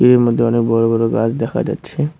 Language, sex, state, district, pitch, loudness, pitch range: Bengali, male, West Bengal, Cooch Behar, 115 Hz, -16 LUFS, 115-125 Hz